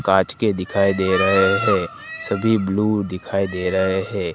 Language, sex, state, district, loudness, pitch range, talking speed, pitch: Hindi, male, Gujarat, Gandhinagar, -19 LUFS, 95-100 Hz, 165 wpm, 95 Hz